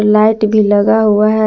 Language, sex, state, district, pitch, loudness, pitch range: Hindi, female, Jharkhand, Palamu, 215 Hz, -11 LUFS, 210-215 Hz